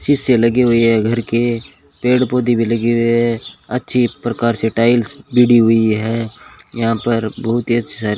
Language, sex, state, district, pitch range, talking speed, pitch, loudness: Hindi, male, Rajasthan, Bikaner, 115-120 Hz, 175 wpm, 115 Hz, -16 LUFS